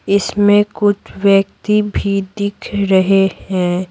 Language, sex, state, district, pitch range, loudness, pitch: Hindi, female, Bihar, Patna, 195-205 Hz, -15 LUFS, 200 Hz